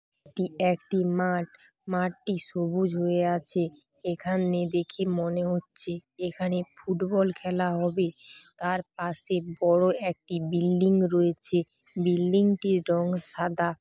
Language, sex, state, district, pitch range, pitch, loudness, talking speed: Bengali, female, West Bengal, Dakshin Dinajpur, 175-185 Hz, 180 Hz, -28 LUFS, 110 wpm